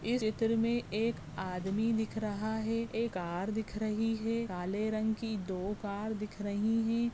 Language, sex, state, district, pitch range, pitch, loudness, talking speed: Hindi, female, Goa, North and South Goa, 205-225 Hz, 220 Hz, -34 LUFS, 170 wpm